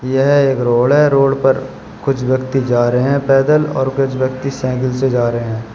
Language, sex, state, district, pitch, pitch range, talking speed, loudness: Hindi, male, Uttar Pradesh, Shamli, 130 Hz, 125-135 Hz, 210 wpm, -15 LUFS